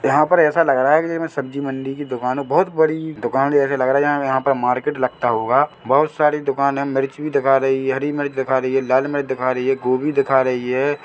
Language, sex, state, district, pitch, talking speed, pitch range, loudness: Hindi, male, Chhattisgarh, Bilaspur, 140 Hz, 255 wpm, 130-145 Hz, -18 LUFS